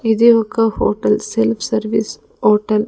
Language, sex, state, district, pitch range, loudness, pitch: Telugu, female, Andhra Pradesh, Sri Satya Sai, 210-225 Hz, -16 LUFS, 220 Hz